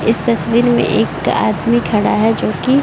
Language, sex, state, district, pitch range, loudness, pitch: Hindi, female, Uttar Pradesh, Varanasi, 220-240 Hz, -14 LUFS, 230 Hz